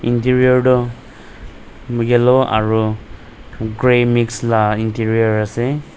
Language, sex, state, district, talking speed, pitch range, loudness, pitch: Nagamese, male, Nagaland, Dimapur, 90 wpm, 110-125 Hz, -15 LUFS, 120 Hz